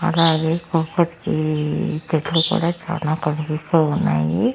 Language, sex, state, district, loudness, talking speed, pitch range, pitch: Telugu, female, Andhra Pradesh, Annamaya, -20 LUFS, 80 wpm, 155-170 Hz, 165 Hz